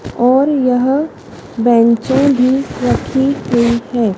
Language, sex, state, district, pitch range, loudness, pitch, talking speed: Hindi, female, Madhya Pradesh, Dhar, 235-270 Hz, -13 LUFS, 250 Hz, 100 wpm